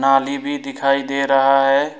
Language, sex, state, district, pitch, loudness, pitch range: Hindi, male, West Bengal, Alipurduar, 140 Hz, -17 LUFS, 135-140 Hz